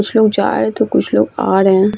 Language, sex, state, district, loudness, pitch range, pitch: Hindi, female, Bihar, Vaishali, -14 LUFS, 190-210 Hz, 200 Hz